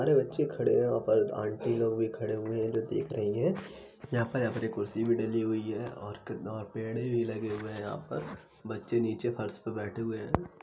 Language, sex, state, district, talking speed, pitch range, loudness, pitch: Hindi, male, Uttar Pradesh, Jalaun, 220 wpm, 110-115 Hz, -32 LUFS, 110 Hz